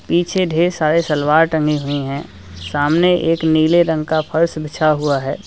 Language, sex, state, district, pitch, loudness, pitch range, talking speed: Hindi, male, Uttar Pradesh, Lalitpur, 155 Hz, -16 LUFS, 145-165 Hz, 175 wpm